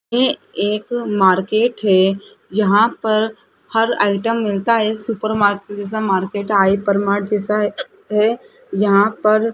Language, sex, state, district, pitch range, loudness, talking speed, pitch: Hindi, female, Rajasthan, Jaipur, 200-220 Hz, -17 LUFS, 130 wpm, 210 Hz